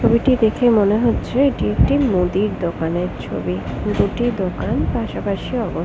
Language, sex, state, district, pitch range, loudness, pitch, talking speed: Bengali, female, West Bengal, Kolkata, 170-240 Hz, -19 LUFS, 205 Hz, 135 wpm